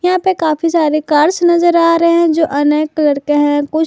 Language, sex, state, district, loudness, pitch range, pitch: Hindi, female, Jharkhand, Palamu, -12 LUFS, 295-335 Hz, 315 Hz